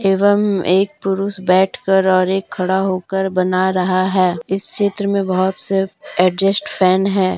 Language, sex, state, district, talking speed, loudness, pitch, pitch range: Hindi, female, Jharkhand, Deoghar, 155 wpm, -16 LUFS, 190 Hz, 185-195 Hz